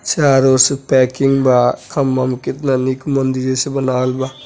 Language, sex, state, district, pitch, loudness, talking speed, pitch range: Bhojpuri, male, Uttar Pradesh, Deoria, 130 Hz, -15 LUFS, 175 wpm, 130-135 Hz